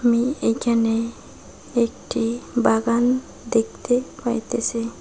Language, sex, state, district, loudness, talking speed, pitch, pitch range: Bengali, female, West Bengal, Cooch Behar, -22 LUFS, 70 wpm, 235 Hz, 230-245 Hz